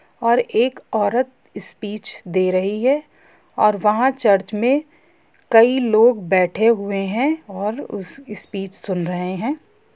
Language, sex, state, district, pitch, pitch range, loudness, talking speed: Hindi, female, Jharkhand, Sahebganj, 220 Hz, 200-260 Hz, -19 LUFS, 130 wpm